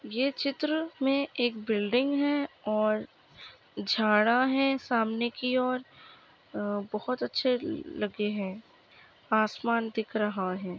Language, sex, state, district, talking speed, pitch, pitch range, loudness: Hindi, female, Maharashtra, Solapur, 115 wpm, 235 Hz, 215-270 Hz, -29 LUFS